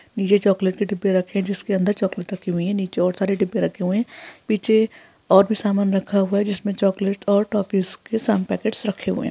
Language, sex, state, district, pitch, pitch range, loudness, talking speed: Hindi, female, Chhattisgarh, Sarguja, 200 Hz, 195-205 Hz, -21 LUFS, 225 wpm